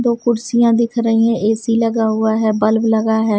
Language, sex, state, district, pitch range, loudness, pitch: Hindi, female, Punjab, Kapurthala, 220-230 Hz, -15 LUFS, 225 Hz